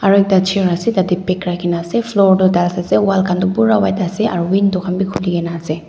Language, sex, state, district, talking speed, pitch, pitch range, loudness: Nagamese, female, Nagaland, Dimapur, 235 wpm, 185 Hz, 175-195 Hz, -15 LUFS